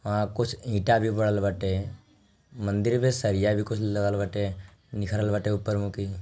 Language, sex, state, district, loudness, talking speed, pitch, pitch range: Bhojpuri, male, Bihar, Gopalganj, -27 LUFS, 165 wpm, 105 Hz, 100-110 Hz